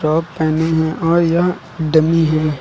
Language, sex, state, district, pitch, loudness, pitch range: Hindi, male, Uttar Pradesh, Lucknow, 160 Hz, -16 LUFS, 155-165 Hz